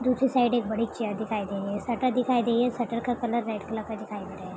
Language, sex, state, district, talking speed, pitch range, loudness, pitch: Hindi, female, Bihar, Araria, 315 wpm, 210-245 Hz, -28 LUFS, 230 Hz